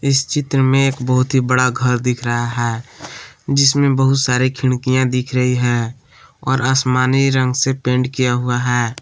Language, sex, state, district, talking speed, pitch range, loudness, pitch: Hindi, male, Jharkhand, Palamu, 175 wpm, 125-135 Hz, -16 LUFS, 130 Hz